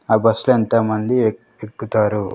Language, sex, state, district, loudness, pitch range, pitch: Telugu, male, Andhra Pradesh, Sri Satya Sai, -18 LUFS, 110-115 Hz, 110 Hz